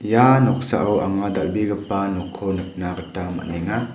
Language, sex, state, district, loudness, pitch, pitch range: Garo, male, Meghalaya, West Garo Hills, -21 LUFS, 100 Hz, 90-110 Hz